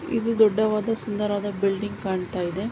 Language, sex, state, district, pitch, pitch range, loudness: Kannada, female, Karnataka, Mysore, 205 Hz, 195-215 Hz, -24 LUFS